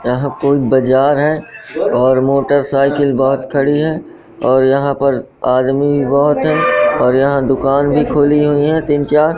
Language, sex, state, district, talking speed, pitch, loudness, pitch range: Hindi, male, Madhya Pradesh, Katni, 155 wpm, 140 Hz, -13 LUFS, 135-145 Hz